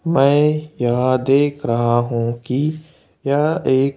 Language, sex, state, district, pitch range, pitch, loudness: Hindi, male, Madhya Pradesh, Bhopal, 120-150 Hz, 135 Hz, -18 LUFS